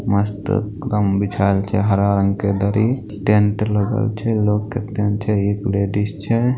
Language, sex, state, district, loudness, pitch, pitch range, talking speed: Maithili, male, Bihar, Begusarai, -19 LUFS, 105 Hz, 100-105 Hz, 165 wpm